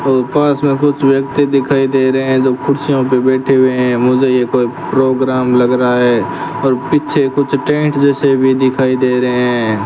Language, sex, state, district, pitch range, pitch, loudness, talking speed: Hindi, male, Rajasthan, Bikaner, 125-140 Hz, 130 Hz, -13 LUFS, 190 wpm